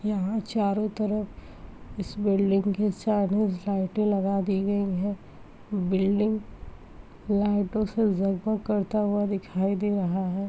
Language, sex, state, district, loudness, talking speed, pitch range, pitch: Hindi, female, Uttar Pradesh, Muzaffarnagar, -26 LUFS, 125 wpm, 195-210 Hz, 205 Hz